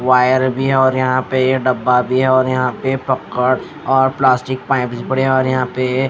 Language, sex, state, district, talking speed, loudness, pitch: Hindi, male, Haryana, Jhajjar, 205 wpm, -16 LUFS, 130 Hz